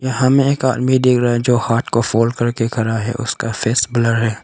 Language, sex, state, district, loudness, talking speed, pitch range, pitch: Hindi, male, Arunachal Pradesh, Longding, -16 LUFS, 245 wpm, 115-125 Hz, 120 Hz